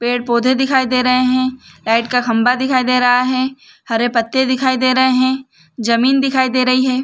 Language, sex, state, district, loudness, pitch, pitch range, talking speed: Hindi, female, Chhattisgarh, Bilaspur, -15 LUFS, 255 Hz, 245-260 Hz, 195 wpm